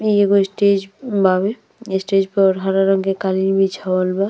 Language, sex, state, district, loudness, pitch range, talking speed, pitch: Bhojpuri, female, Uttar Pradesh, Deoria, -17 LUFS, 190-200 Hz, 165 wpm, 195 Hz